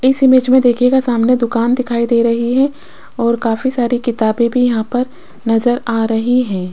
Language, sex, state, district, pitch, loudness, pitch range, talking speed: Hindi, female, Rajasthan, Jaipur, 240 Hz, -14 LUFS, 230-255 Hz, 190 wpm